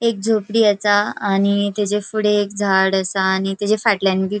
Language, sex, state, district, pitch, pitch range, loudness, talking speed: Konkani, female, Goa, North and South Goa, 205 Hz, 195-210 Hz, -18 LUFS, 190 wpm